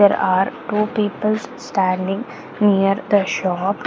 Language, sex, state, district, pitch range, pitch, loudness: English, female, Maharashtra, Gondia, 190-215 Hz, 200 Hz, -19 LUFS